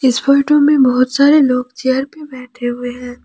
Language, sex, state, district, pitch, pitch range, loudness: Hindi, female, Jharkhand, Ranchi, 260 Hz, 250-280 Hz, -13 LUFS